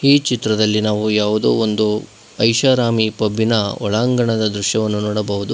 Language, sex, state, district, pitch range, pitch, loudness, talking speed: Kannada, male, Karnataka, Bangalore, 105-115 Hz, 110 Hz, -17 LUFS, 110 wpm